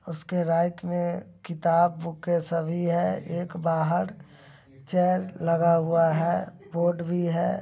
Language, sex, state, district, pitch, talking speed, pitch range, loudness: Angika, male, Bihar, Begusarai, 170 Hz, 125 wpm, 165-175 Hz, -26 LUFS